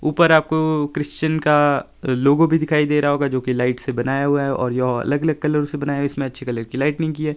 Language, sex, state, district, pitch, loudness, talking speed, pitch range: Hindi, male, Himachal Pradesh, Shimla, 145 Hz, -19 LUFS, 260 wpm, 135-150 Hz